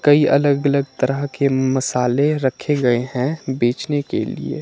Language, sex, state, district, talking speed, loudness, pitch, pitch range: Hindi, male, Himachal Pradesh, Shimla, 155 wpm, -19 LUFS, 135 Hz, 130-145 Hz